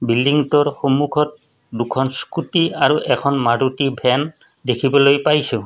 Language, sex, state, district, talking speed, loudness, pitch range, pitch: Assamese, male, Assam, Kamrup Metropolitan, 105 wpm, -17 LUFS, 130-150 Hz, 140 Hz